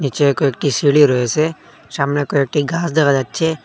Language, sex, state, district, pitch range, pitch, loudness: Bengali, male, Assam, Hailakandi, 140-155 Hz, 145 Hz, -16 LUFS